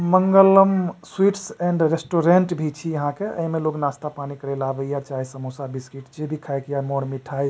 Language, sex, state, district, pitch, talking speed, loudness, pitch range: Maithili, male, Bihar, Supaul, 150 Hz, 225 wpm, -21 LUFS, 140-175 Hz